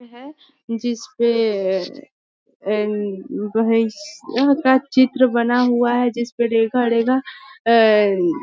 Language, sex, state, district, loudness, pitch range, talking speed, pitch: Hindi, female, Bihar, Muzaffarpur, -18 LUFS, 225-260 Hz, 80 wpm, 235 Hz